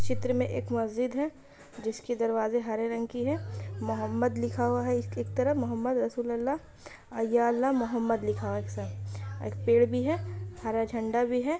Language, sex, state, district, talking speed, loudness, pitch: Hindi, male, Bihar, Muzaffarpur, 185 wpm, -30 LUFS, 220 Hz